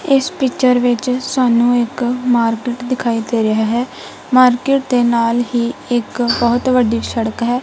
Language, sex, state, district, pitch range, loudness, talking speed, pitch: Punjabi, female, Punjab, Kapurthala, 235-255 Hz, -15 LUFS, 150 wpm, 245 Hz